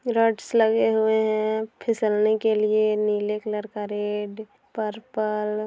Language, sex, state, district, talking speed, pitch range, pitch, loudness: Hindi, male, Bihar, Sitamarhi, 135 wpm, 210-220 Hz, 215 Hz, -24 LUFS